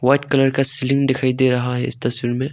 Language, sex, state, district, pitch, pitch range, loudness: Hindi, male, Arunachal Pradesh, Longding, 130 Hz, 125-135 Hz, -16 LUFS